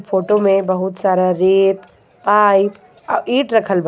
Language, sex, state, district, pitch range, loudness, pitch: Bhojpuri, female, Jharkhand, Palamu, 185-205 Hz, -15 LUFS, 195 Hz